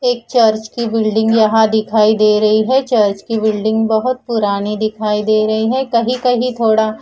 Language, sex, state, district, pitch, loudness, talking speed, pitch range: Hindi, female, Punjab, Fazilka, 220 Hz, -14 LUFS, 180 wpm, 215-235 Hz